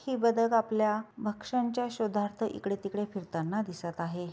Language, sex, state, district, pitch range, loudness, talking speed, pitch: Marathi, female, Maharashtra, Dhule, 195-230 Hz, -32 LUFS, 140 wpm, 210 Hz